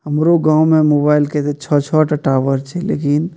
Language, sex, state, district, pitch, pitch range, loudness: Maithili, male, Bihar, Purnia, 150 Hz, 145-155 Hz, -15 LUFS